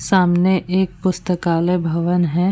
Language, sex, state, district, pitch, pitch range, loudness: Hindi, female, Bihar, Vaishali, 180 Hz, 175-185 Hz, -18 LUFS